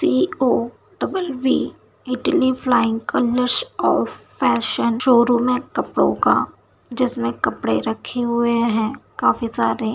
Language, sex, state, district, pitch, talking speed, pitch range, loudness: Hindi, female, Bihar, Saharsa, 240 Hz, 115 wpm, 230-255 Hz, -20 LUFS